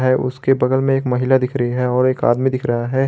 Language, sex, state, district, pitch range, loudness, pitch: Hindi, male, Jharkhand, Garhwa, 125-130 Hz, -17 LUFS, 130 Hz